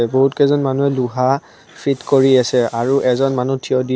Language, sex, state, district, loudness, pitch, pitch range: Assamese, male, Assam, Kamrup Metropolitan, -16 LUFS, 135 Hz, 125-135 Hz